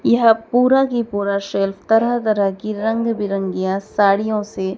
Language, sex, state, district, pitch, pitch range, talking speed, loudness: Hindi, female, Madhya Pradesh, Dhar, 210 Hz, 195-225 Hz, 150 wpm, -18 LUFS